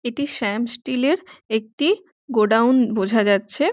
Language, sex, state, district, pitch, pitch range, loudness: Bengali, female, West Bengal, Jhargram, 240 Hz, 220-285 Hz, -20 LUFS